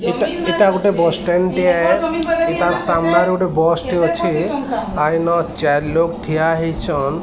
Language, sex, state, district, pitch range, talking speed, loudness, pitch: Odia, male, Odisha, Sambalpur, 165-190 Hz, 150 wpm, -17 LUFS, 170 Hz